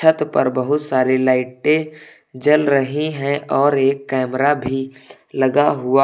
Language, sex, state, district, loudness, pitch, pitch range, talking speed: Hindi, male, Uttar Pradesh, Lucknow, -18 LUFS, 135 Hz, 130-145 Hz, 140 wpm